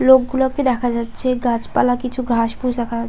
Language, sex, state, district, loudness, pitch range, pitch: Bengali, female, West Bengal, Paschim Medinipur, -19 LUFS, 235-255 Hz, 245 Hz